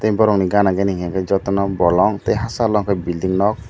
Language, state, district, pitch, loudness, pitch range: Kokborok, Tripura, Dhalai, 100 Hz, -18 LUFS, 95-105 Hz